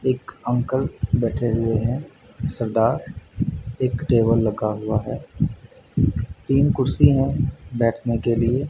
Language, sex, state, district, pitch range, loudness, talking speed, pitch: Hindi, male, Punjab, Kapurthala, 115-130 Hz, -22 LUFS, 115 wpm, 120 Hz